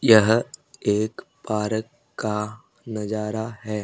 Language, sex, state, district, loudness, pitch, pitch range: Hindi, male, Rajasthan, Jaipur, -24 LUFS, 110 Hz, 105-110 Hz